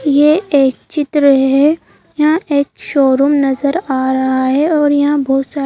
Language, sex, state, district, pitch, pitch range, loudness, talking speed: Hindi, female, Madhya Pradesh, Bhopal, 285 Hz, 270-300 Hz, -13 LUFS, 160 wpm